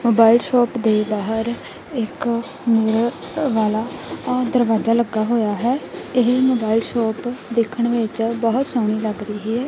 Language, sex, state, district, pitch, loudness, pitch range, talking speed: Punjabi, female, Punjab, Kapurthala, 230 Hz, -20 LUFS, 220-245 Hz, 135 wpm